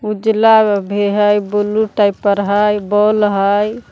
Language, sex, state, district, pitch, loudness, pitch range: Magahi, female, Jharkhand, Palamu, 205 Hz, -14 LUFS, 205-215 Hz